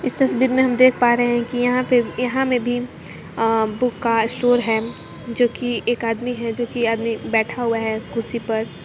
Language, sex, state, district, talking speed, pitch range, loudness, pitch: Hindi, female, Jharkhand, Jamtara, 205 wpm, 225-245 Hz, -20 LUFS, 240 Hz